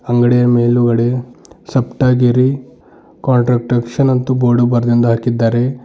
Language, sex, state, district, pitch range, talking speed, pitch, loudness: Kannada, male, Karnataka, Bidar, 120-125 Hz, 80 wpm, 120 Hz, -14 LUFS